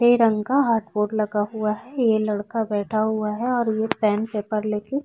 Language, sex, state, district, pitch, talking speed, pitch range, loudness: Hindi, female, Chhattisgarh, Korba, 215 Hz, 215 wpm, 210-230 Hz, -23 LUFS